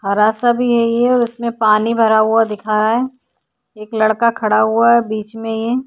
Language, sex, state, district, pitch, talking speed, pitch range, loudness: Hindi, female, Uttar Pradesh, Hamirpur, 225 Hz, 225 wpm, 215-235 Hz, -15 LUFS